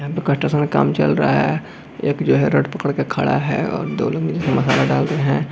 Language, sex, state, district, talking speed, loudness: Hindi, male, Jharkhand, Jamtara, 250 wpm, -18 LUFS